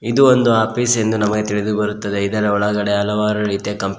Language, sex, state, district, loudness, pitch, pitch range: Kannada, male, Karnataka, Koppal, -17 LUFS, 105 Hz, 105-110 Hz